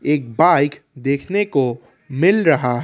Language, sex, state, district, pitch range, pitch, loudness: Hindi, male, Assam, Kamrup Metropolitan, 135-165 Hz, 145 Hz, -17 LUFS